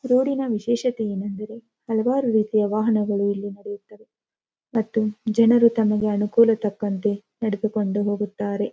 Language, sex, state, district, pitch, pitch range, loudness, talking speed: Kannada, female, Karnataka, Dharwad, 215 Hz, 205-230 Hz, -22 LUFS, 110 wpm